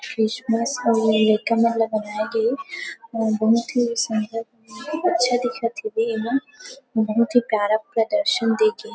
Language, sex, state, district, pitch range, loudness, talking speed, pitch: Chhattisgarhi, female, Chhattisgarh, Rajnandgaon, 220-250 Hz, -22 LUFS, 120 wpm, 230 Hz